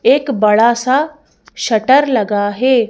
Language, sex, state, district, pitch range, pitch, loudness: Hindi, female, Madhya Pradesh, Bhopal, 220-280 Hz, 255 Hz, -13 LUFS